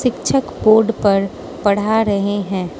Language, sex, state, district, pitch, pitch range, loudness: Hindi, female, Mizoram, Aizawl, 205 Hz, 200-220 Hz, -16 LUFS